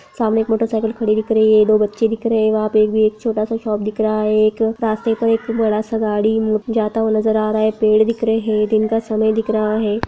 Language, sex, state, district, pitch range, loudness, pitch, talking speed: Hindi, female, Bihar, Gaya, 215-225 Hz, -17 LUFS, 220 Hz, 260 wpm